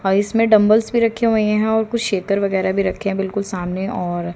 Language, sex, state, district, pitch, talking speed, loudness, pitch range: Hindi, female, Haryana, Jhajjar, 200 Hz, 220 wpm, -18 LUFS, 190-220 Hz